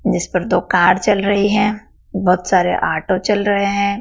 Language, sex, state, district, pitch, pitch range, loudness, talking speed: Hindi, female, Madhya Pradesh, Dhar, 200 Hz, 185-205 Hz, -16 LUFS, 195 wpm